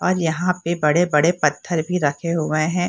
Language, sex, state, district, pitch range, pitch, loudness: Hindi, female, Bihar, Purnia, 155-180 Hz, 170 Hz, -20 LUFS